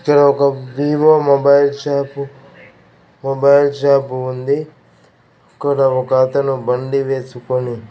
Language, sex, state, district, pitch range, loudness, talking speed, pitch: Telugu, male, Andhra Pradesh, Krishna, 130-140 Hz, -15 LUFS, 90 wpm, 140 Hz